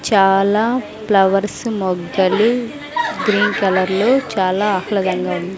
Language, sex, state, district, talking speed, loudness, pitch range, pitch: Telugu, female, Andhra Pradesh, Sri Satya Sai, 95 wpm, -17 LUFS, 190-220 Hz, 200 Hz